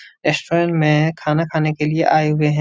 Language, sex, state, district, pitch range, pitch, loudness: Hindi, male, Uttar Pradesh, Etah, 150-165 Hz, 155 Hz, -17 LUFS